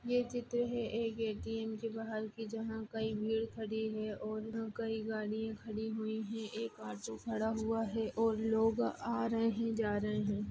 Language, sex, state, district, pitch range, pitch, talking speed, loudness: Hindi, female, Chhattisgarh, Jashpur, 220-225 Hz, 220 Hz, 195 wpm, -38 LUFS